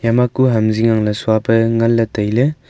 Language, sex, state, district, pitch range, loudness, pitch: Wancho, male, Arunachal Pradesh, Longding, 110-125 Hz, -15 LUFS, 115 Hz